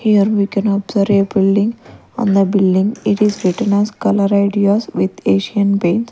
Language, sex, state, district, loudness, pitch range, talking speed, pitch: English, female, Punjab, Kapurthala, -15 LUFS, 195-210 Hz, 185 wpm, 200 Hz